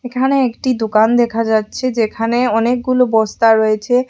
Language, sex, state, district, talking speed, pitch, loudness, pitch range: Bengali, female, Assam, Hailakandi, 130 wpm, 235 Hz, -15 LUFS, 220-250 Hz